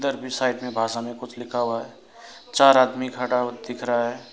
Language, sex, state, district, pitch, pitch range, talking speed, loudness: Hindi, male, West Bengal, Alipurduar, 125 Hz, 120-130 Hz, 205 wpm, -23 LUFS